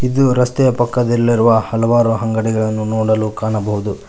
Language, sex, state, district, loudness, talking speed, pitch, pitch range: Kannada, male, Karnataka, Koppal, -15 LUFS, 105 wpm, 115 Hz, 110-120 Hz